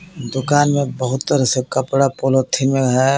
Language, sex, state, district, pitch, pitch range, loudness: Hindi, male, Jharkhand, Garhwa, 135 Hz, 130-140 Hz, -17 LUFS